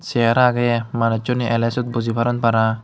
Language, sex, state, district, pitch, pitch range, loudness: Chakma, male, Tripura, Unakoti, 115 Hz, 115-120 Hz, -19 LUFS